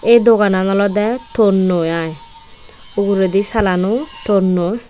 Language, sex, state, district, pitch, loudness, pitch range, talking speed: Chakma, female, Tripura, West Tripura, 200 Hz, -15 LUFS, 185-225 Hz, 100 wpm